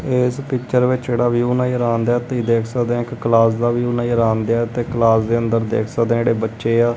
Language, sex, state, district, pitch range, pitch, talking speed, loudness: Punjabi, male, Punjab, Kapurthala, 115-120 Hz, 120 Hz, 240 wpm, -18 LUFS